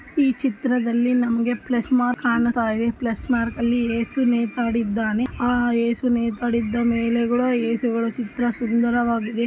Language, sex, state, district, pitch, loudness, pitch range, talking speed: Kannada, female, Karnataka, Bellary, 235 Hz, -22 LUFS, 230-245 Hz, 110 wpm